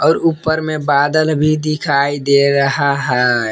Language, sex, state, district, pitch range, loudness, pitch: Hindi, male, Jharkhand, Palamu, 140-155 Hz, -15 LUFS, 145 Hz